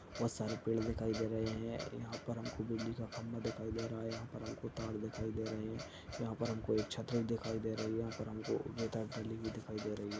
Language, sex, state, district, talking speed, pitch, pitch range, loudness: Hindi, male, Uttar Pradesh, Ghazipur, 255 wpm, 110 Hz, 110-115 Hz, -41 LUFS